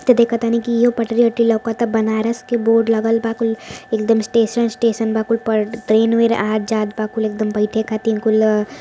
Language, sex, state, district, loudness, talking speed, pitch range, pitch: Hindi, female, Uttar Pradesh, Varanasi, -17 LUFS, 225 wpm, 220-230 Hz, 225 Hz